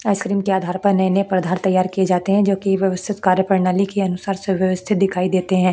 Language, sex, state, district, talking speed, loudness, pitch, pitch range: Hindi, female, Goa, North and South Goa, 230 wpm, -18 LUFS, 190 Hz, 185-195 Hz